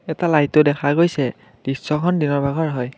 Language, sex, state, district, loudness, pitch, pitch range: Assamese, male, Assam, Kamrup Metropolitan, -19 LUFS, 145 Hz, 135-160 Hz